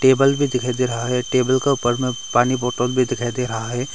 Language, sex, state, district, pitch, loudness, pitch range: Hindi, male, Arunachal Pradesh, Longding, 125 Hz, -20 LUFS, 120-130 Hz